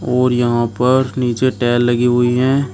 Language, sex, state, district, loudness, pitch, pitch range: Hindi, male, Uttar Pradesh, Shamli, -15 LUFS, 125 Hz, 120-130 Hz